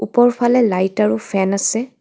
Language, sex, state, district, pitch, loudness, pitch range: Assamese, female, Assam, Kamrup Metropolitan, 225 Hz, -16 LUFS, 195-240 Hz